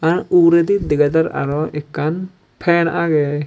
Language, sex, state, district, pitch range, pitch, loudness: Chakma, male, Tripura, Dhalai, 150-170 Hz, 165 Hz, -16 LUFS